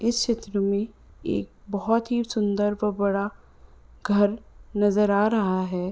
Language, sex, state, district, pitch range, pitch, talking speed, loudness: Hindi, female, Uttar Pradesh, Ghazipur, 200-215 Hz, 205 Hz, 140 wpm, -25 LUFS